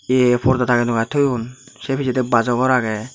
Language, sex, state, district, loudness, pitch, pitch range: Chakma, male, Tripura, Unakoti, -18 LUFS, 125 Hz, 115-130 Hz